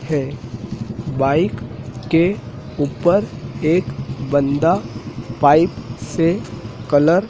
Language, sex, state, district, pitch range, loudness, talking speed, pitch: Hindi, male, Madhya Pradesh, Dhar, 115-160 Hz, -19 LUFS, 80 wpm, 135 Hz